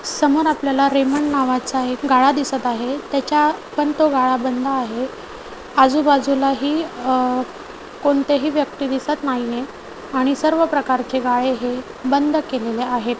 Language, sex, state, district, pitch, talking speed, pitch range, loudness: Marathi, female, Maharashtra, Chandrapur, 275 Hz, 130 wpm, 255-295 Hz, -19 LUFS